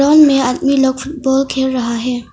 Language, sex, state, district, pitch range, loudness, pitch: Hindi, female, Arunachal Pradesh, Longding, 250-275 Hz, -14 LUFS, 265 Hz